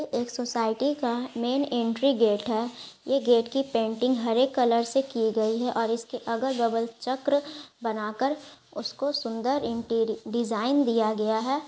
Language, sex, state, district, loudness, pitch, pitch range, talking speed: Hindi, female, Bihar, Gaya, -27 LUFS, 240 Hz, 230-270 Hz, 155 wpm